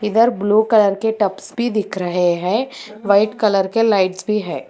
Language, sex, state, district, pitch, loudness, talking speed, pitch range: Hindi, female, Telangana, Hyderabad, 210 Hz, -17 LUFS, 190 wpm, 195-220 Hz